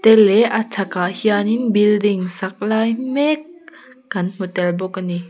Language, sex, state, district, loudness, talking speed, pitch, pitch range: Mizo, female, Mizoram, Aizawl, -18 LUFS, 190 wpm, 210 Hz, 185-230 Hz